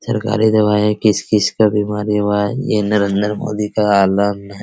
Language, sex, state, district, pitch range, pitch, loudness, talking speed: Hindi, male, Bihar, Araria, 100-105 Hz, 105 Hz, -16 LUFS, 170 wpm